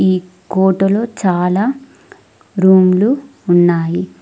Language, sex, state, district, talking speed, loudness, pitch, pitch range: Telugu, female, Telangana, Mahabubabad, 70 wpm, -14 LUFS, 190 Hz, 180-205 Hz